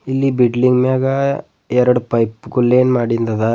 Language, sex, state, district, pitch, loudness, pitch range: Kannada, male, Karnataka, Bidar, 125 Hz, -15 LUFS, 115-130 Hz